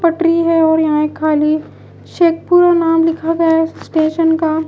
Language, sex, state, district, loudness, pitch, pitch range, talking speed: Hindi, female, Bihar, Kaimur, -14 LUFS, 325 Hz, 315-335 Hz, 155 wpm